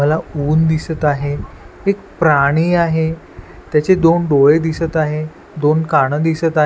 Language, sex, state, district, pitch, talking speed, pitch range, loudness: Marathi, male, Maharashtra, Washim, 160 Hz, 145 wpm, 150-165 Hz, -15 LUFS